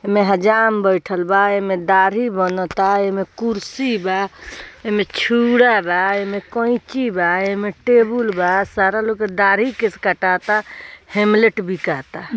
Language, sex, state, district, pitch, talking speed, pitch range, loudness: Bhojpuri, female, Bihar, East Champaran, 200 Hz, 165 wpm, 190-225 Hz, -17 LUFS